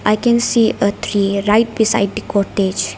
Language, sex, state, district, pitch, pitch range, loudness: English, female, Arunachal Pradesh, Lower Dibang Valley, 210 Hz, 200-225 Hz, -16 LUFS